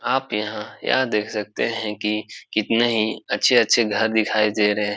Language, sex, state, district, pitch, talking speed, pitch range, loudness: Hindi, male, Bihar, Supaul, 105 Hz, 180 wpm, 105-110 Hz, -21 LUFS